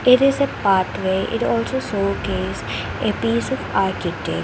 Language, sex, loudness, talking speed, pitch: English, female, -20 LUFS, 160 wpm, 190 Hz